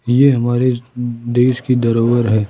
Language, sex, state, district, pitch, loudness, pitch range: Hindi, male, Rajasthan, Jaipur, 120 Hz, -15 LUFS, 120-125 Hz